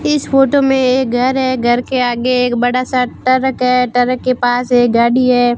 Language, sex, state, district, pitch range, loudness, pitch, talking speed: Hindi, female, Rajasthan, Barmer, 245-260 Hz, -13 LUFS, 250 Hz, 215 wpm